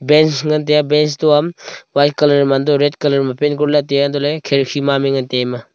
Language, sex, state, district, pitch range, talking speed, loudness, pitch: Wancho, male, Arunachal Pradesh, Longding, 140-150 Hz, 260 wpm, -15 LUFS, 145 Hz